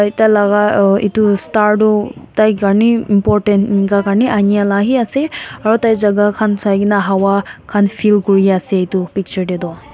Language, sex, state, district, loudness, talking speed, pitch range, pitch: Nagamese, female, Nagaland, Kohima, -13 LUFS, 180 wpm, 200-215 Hz, 205 Hz